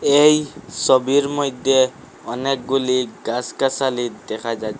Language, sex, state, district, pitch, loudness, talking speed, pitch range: Bengali, male, Assam, Hailakandi, 130 Hz, -19 LUFS, 100 wpm, 120-135 Hz